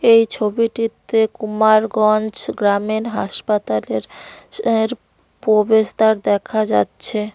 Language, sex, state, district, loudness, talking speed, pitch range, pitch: Bengali, female, West Bengal, Cooch Behar, -18 LUFS, 75 wpm, 210-225 Hz, 215 Hz